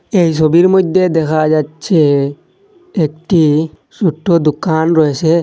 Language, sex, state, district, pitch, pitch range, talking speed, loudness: Bengali, male, Assam, Hailakandi, 160 Hz, 155-180 Hz, 100 wpm, -13 LUFS